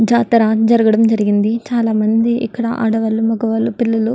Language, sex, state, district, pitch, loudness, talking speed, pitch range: Telugu, female, Andhra Pradesh, Guntur, 225 Hz, -15 LUFS, 130 wpm, 220-230 Hz